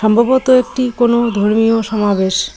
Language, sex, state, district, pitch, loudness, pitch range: Bengali, female, West Bengal, Cooch Behar, 225 Hz, -13 LUFS, 215-245 Hz